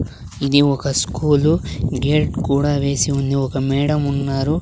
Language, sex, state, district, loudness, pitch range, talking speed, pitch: Telugu, male, Andhra Pradesh, Sri Satya Sai, -18 LUFS, 135-145 Hz, 130 wpm, 140 Hz